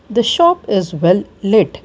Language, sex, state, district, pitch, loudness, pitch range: English, female, Karnataka, Bangalore, 205 Hz, -14 LUFS, 185-235 Hz